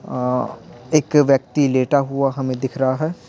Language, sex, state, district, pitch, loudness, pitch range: Hindi, male, Bihar, Patna, 135 Hz, -19 LUFS, 130-145 Hz